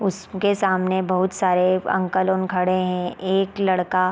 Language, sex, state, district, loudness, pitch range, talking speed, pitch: Hindi, female, Chhattisgarh, Raigarh, -21 LUFS, 185-190 Hz, 145 wpm, 185 Hz